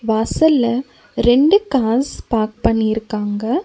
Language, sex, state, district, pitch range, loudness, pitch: Tamil, female, Tamil Nadu, Nilgiris, 220-275 Hz, -17 LUFS, 235 Hz